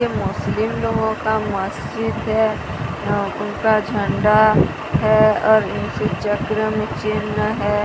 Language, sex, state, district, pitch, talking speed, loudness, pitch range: Hindi, female, Odisha, Sambalpur, 215 Hz, 115 wpm, -19 LUFS, 210-220 Hz